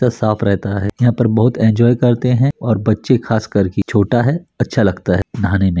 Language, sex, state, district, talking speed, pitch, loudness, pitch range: Hindi, male, Chhattisgarh, Bastar, 215 wpm, 110 Hz, -15 LUFS, 100-125 Hz